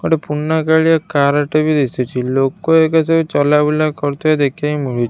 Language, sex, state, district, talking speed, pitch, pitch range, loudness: Odia, female, Odisha, Khordha, 175 wpm, 150 Hz, 140-160 Hz, -15 LUFS